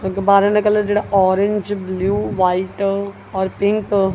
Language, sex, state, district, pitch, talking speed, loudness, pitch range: Punjabi, female, Punjab, Kapurthala, 200 Hz, 130 wpm, -17 LUFS, 190-205 Hz